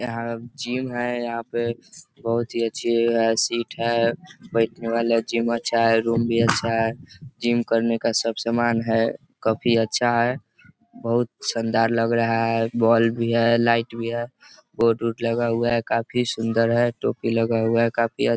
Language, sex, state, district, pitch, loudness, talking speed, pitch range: Hindi, male, Bihar, East Champaran, 115 Hz, -22 LUFS, 175 wpm, 115-120 Hz